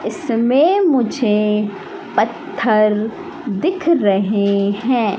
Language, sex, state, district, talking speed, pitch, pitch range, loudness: Hindi, female, Madhya Pradesh, Katni, 70 wpm, 220 Hz, 210-295 Hz, -17 LUFS